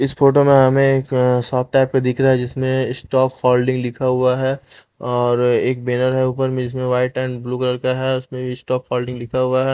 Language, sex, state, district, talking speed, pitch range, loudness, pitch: Hindi, male, Punjab, Pathankot, 230 wpm, 125-130 Hz, -18 LUFS, 130 Hz